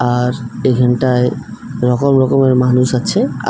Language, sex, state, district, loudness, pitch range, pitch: Bengali, male, West Bengal, Alipurduar, -14 LUFS, 125-130 Hz, 125 Hz